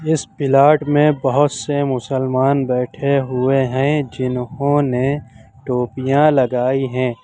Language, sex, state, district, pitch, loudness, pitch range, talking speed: Hindi, male, Uttar Pradesh, Lucknow, 135 Hz, -17 LUFS, 125-145 Hz, 105 wpm